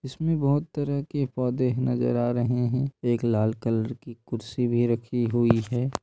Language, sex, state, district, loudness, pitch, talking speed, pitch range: Hindi, male, Bihar, Purnia, -26 LUFS, 125 Hz, 190 wpm, 120-130 Hz